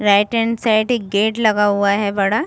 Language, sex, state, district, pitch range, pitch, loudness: Hindi, female, Chhattisgarh, Raigarh, 200-230 Hz, 210 Hz, -16 LUFS